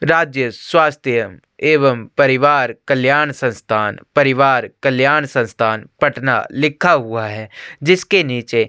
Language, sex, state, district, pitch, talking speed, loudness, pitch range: Hindi, male, Chhattisgarh, Sukma, 135 Hz, 105 wpm, -15 LUFS, 115-150 Hz